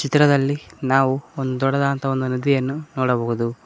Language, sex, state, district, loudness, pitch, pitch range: Kannada, male, Karnataka, Koppal, -21 LUFS, 135 Hz, 130-140 Hz